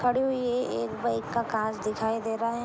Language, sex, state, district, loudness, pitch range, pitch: Hindi, female, Jharkhand, Jamtara, -29 LUFS, 215-245 Hz, 225 Hz